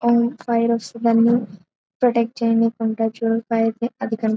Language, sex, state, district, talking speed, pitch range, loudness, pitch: Telugu, female, Telangana, Karimnagar, 150 wpm, 225-235 Hz, -20 LUFS, 230 Hz